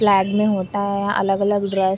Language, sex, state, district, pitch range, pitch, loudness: Hindi, female, Uttar Pradesh, Varanasi, 195-205 Hz, 200 Hz, -19 LUFS